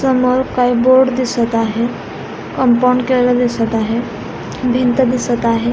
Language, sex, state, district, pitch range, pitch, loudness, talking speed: Marathi, female, Maharashtra, Pune, 235-255 Hz, 245 Hz, -15 LUFS, 125 wpm